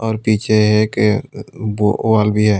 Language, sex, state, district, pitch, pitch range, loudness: Hindi, male, Tripura, West Tripura, 105 Hz, 105-110 Hz, -16 LUFS